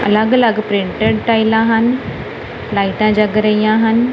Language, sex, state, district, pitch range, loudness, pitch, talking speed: Punjabi, female, Punjab, Kapurthala, 215-225 Hz, -14 LUFS, 220 Hz, 130 wpm